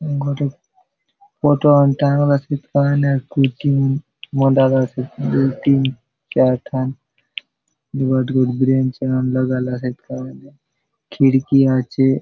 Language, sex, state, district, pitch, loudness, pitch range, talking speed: Halbi, male, Chhattisgarh, Bastar, 135 Hz, -17 LUFS, 130-140 Hz, 110 wpm